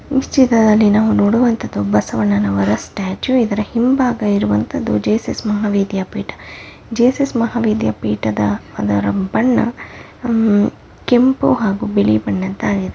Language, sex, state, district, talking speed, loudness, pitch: Kannada, female, Karnataka, Mysore, 100 wpm, -16 LUFS, 205 Hz